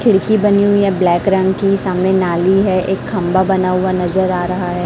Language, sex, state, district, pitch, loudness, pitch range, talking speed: Hindi, female, Chhattisgarh, Raipur, 190 Hz, -14 LUFS, 180-195 Hz, 220 wpm